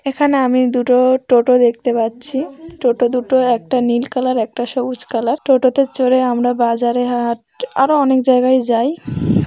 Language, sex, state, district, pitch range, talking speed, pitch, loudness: Bengali, female, West Bengal, North 24 Parganas, 240-265 Hz, 145 wpm, 255 Hz, -15 LUFS